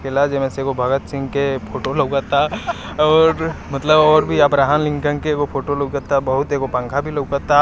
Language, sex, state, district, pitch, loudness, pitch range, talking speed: Hindi, male, Bihar, East Champaran, 140 Hz, -18 LUFS, 135-150 Hz, 155 wpm